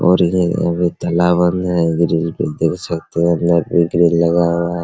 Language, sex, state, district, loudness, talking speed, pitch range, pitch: Hindi, male, Bihar, Araria, -16 LUFS, 225 wpm, 85-90 Hz, 85 Hz